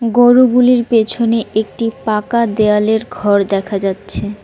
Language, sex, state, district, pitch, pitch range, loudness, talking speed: Bengali, female, West Bengal, Cooch Behar, 220 Hz, 210-240 Hz, -14 LUFS, 110 wpm